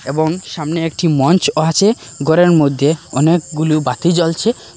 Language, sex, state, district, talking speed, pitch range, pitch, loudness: Bengali, male, Assam, Hailakandi, 125 wpm, 150-175 Hz, 160 Hz, -14 LUFS